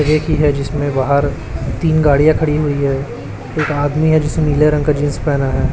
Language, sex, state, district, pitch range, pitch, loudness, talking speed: Hindi, male, Chhattisgarh, Raipur, 140-155 Hz, 145 Hz, -15 LUFS, 210 wpm